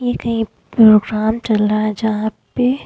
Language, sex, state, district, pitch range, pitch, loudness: Hindi, female, Goa, North and South Goa, 215-235 Hz, 220 Hz, -16 LUFS